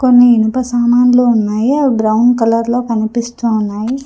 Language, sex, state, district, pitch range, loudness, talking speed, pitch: Telugu, female, Telangana, Hyderabad, 225-245 Hz, -12 LUFS, 150 wpm, 240 Hz